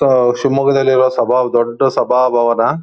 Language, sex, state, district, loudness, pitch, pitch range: Kannada, male, Karnataka, Shimoga, -13 LUFS, 130 Hz, 120-135 Hz